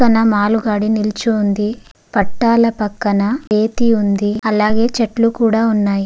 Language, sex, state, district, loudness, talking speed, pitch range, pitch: Telugu, female, Andhra Pradesh, Guntur, -15 LUFS, 355 wpm, 205-230 Hz, 220 Hz